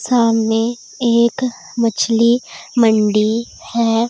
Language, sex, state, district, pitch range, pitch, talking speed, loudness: Hindi, female, Punjab, Pathankot, 225-240 Hz, 230 Hz, 75 wpm, -16 LUFS